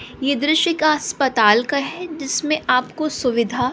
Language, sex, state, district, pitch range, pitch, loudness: Hindi, female, Bihar, West Champaran, 250-310 Hz, 280 Hz, -19 LUFS